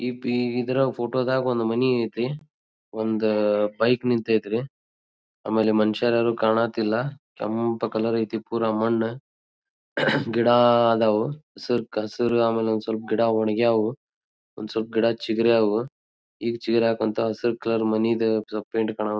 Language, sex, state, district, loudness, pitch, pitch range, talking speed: Kannada, male, Karnataka, Dharwad, -23 LUFS, 115 Hz, 110-120 Hz, 120 wpm